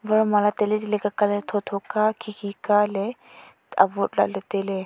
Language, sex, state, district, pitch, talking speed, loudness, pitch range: Wancho, female, Arunachal Pradesh, Longding, 205 Hz, 170 wpm, -23 LUFS, 200-215 Hz